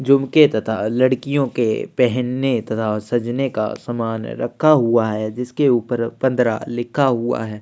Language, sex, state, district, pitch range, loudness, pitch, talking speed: Hindi, male, Chhattisgarh, Sukma, 110-130 Hz, -19 LUFS, 120 Hz, 140 wpm